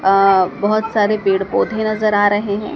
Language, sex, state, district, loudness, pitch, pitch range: Hindi, male, Madhya Pradesh, Dhar, -16 LUFS, 205 Hz, 195-215 Hz